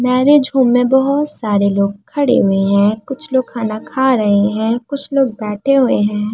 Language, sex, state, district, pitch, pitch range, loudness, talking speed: Hindi, female, Uttar Pradesh, Muzaffarnagar, 245 Hz, 210-270 Hz, -14 LUFS, 190 wpm